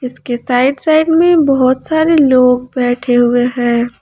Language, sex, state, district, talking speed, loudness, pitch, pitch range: Hindi, female, Jharkhand, Ranchi, 150 wpm, -12 LUFS, 255 Hz, 245-295 Hz